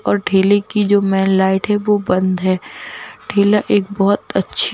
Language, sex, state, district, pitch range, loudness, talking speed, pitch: Hindi, female, Bihar, Darbhanga, 190-205 Hz, -16 LUFS, 175 wpm, 200 Hz